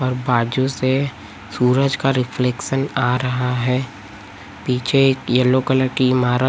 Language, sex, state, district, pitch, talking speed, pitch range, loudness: Hindi, male, Chhattisgarh, Raipur, 125 Hz, 140 wpm, 125-130 Hz, -18 LUFS